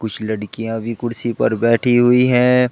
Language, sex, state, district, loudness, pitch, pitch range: Hindi, male, Uttar Pradesh, Shamli, -16 LUFS, 115 Hz, 110-125 Hz